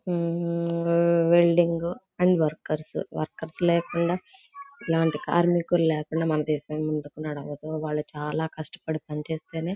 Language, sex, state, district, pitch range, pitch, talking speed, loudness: Telugu, female, Andhra Pradesh, Guntur, 155-175 Hz, 165 Hz, 105 wpm, -26 LUFS